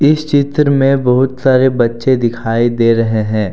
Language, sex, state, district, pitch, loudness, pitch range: Hindi, male, Jharkhand, Deoghar, 130 Hz, -13 LUFS, 115-135 Hz